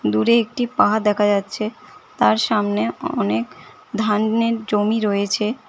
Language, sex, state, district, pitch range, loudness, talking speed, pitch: Bengali, female, West Bengal, Cooch Behar, 210-230 Hz, -19 LUFS, 115 wpm, 215 Hz